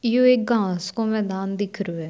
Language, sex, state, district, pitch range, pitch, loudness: Marwari, female, Rajasthan, Churu, 190-230 Hz, 205 Hz, -22 LUFS